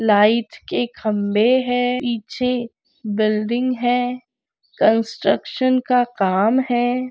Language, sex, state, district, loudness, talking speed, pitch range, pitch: Hindi, female, Maharashtra, Aurangabad, -19 LUFS, 95 wpm, 220-250 Hz, 245 Hz